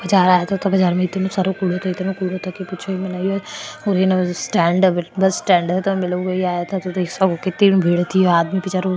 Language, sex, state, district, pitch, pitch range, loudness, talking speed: Marwari, female, Rajasthan, Churu, 185 Hz, 180-190 Hz, -18 LUFS, 100 wpm